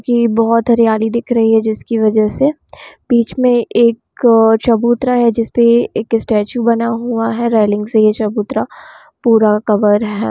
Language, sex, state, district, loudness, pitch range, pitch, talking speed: Hindi, female, Bihar, Sitamarhi, -13 LUFS, 220-235 Hz, 230 Hz, 155 wpm